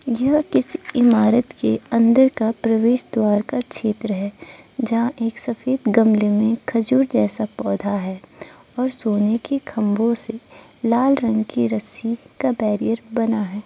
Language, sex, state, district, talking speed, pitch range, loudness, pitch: Hindi, female, Arunachal Pradesh, Lower Dibang Valley, 145 wpm, 210-245 Hz, -20 LUFS, 230 Hz